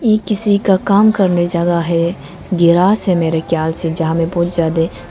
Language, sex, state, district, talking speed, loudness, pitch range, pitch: Hindi, female, Arunachal Pradesh, Lower Dibang Valley, 200 wpm, -14 LUFS, 165-195 Hz, 175 Hz